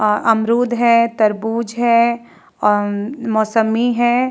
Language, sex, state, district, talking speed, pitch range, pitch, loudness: Hindi, female, Bihar, Vaishali, 110 wpm, 220-240 Hz, 230 Hz, -16 LUFS